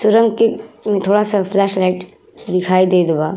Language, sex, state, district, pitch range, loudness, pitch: Bhojpuri, female, Uttar Pradesh, Ghazipur, 185-215 Hz, -16 LUFS, 195 Hz